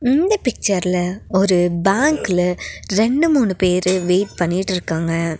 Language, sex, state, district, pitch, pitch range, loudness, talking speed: Tamil, female, Tamil Nadu, Nilgiris, 185 Hz, 180-220 Hz, -18 LUFS, 100 wpm